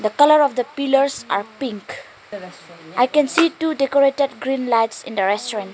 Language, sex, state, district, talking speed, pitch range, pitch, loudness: English, female, Arunachal Pradesh, Lower Dibang Valley, 180 wpm, 210-280 Hz, 250 Hz, -19 LUFS